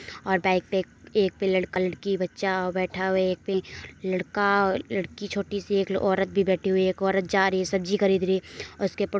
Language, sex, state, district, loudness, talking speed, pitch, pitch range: Hindi, female, Uttar Pradesh, Muzaffarnagar, -26 LUFS, 235 wpm, 190 Hz, 185-195 Hz